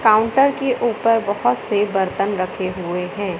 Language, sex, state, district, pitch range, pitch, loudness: Hindi, male, Madhya Pradesh, Katni, 185-230 Hz, 205 Hz, -19 LUFS